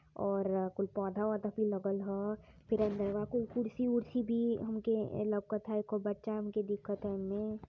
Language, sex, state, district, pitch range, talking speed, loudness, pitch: Hindi, female, Uttar Pradesh, Varanasi, 200-220 Hz, 170 wpm, -36 LUFS, 210 Hz